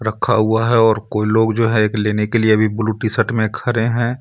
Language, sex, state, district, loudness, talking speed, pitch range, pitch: Hindi, male, Jharkhand, Ranchi, -16 LUFS, 255 wpm, 110-115 Hz, 110 Hz